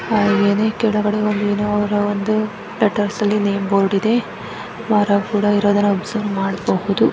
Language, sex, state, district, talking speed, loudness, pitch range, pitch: Kannada, female, Karnataka, Gulbarga, 110 wpm, -18 LUFS, 205-210 Hz, 205 Hz